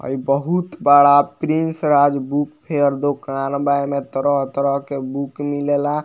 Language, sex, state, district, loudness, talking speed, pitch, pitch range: Bhojpuri, male, Bihar, Muzaffarpur, -18 LUFS, 150 wpm, 145 Hz, 140-145 Hz